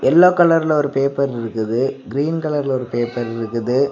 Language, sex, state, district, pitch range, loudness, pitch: Tamil, male, Tamil Nadu, Kanyakumari, 120-150 Hz, -18 LUFS, 135 Hz